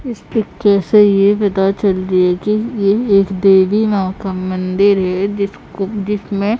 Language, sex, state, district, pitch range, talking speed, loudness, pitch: Hindi, female, Odisha, Khordha, 190-210 Hz, 155 wpm, -15 LUFS, 200 Hz